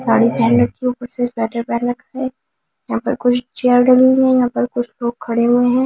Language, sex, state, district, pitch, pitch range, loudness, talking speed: Hindi, female, Delhi, New Delhi, 245 Hz, 235-255 Hz, -16 LUFS, 235 wpm